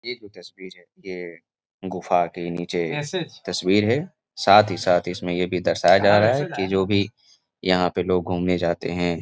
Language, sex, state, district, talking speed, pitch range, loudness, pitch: Hindi, male, Bihar, Gopalganj, 175 wpm, 90-95 Hz, -21 LUFS, 90 Hz